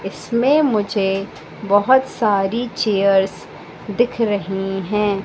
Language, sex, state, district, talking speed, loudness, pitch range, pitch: Hindi, female, Madhya Pradesh, Katni, 90 wpm, -18 LUFS, 195-230 Hz, 205 Hz